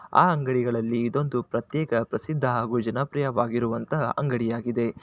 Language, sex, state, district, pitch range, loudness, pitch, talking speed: Kannada, male, Karnataka, Shimoga, 115-140 Hz, -26 LUFS, 120 Hz, 120 wpm